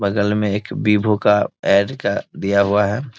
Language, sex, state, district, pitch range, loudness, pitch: Hindi, male, Bihar, Bhagalpur, 100-105 Hz, -18 LUFS, 105 Hz